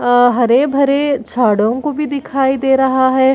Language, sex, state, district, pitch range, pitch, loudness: Hindi, female, Chhattisgarh, Bilaspur, 245-275 Hz, 265 Hz, -14 LUFS